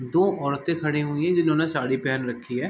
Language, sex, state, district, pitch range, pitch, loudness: Hindi, male, Chhattisgarh, Raigarh, 130-165 Hz, 150 Hz, -24 LUFS